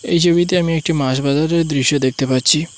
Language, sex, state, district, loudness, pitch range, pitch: Bengali, male, Assam, Hailakandi, -16 LUFS, 135-170 Hz, 150 Hz